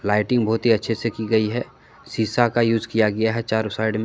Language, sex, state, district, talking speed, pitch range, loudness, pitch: Hindi, male, Jharkhand, Deoghar, 250 wpm, 110-115 Hz, -21 LUFS, 110 Hz